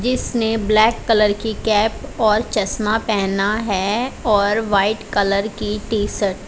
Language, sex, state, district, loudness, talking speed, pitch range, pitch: Hindi, female, Haryana, Charkhi Dadri, -18 LUFS, 140 wpm, 205-225 Hz, 215 Hz